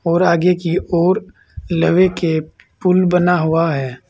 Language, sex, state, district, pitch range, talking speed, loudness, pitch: Hindi, male, Uttar Pradesh, Saharanpur, 165-180 Hz, 145 wpm, -16 LUFS, 175 Hz